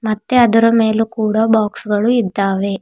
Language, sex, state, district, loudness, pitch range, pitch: Kannada, female, Karnataka, Bidar, -14 LUFS, 210-230 Hz, 220 Hz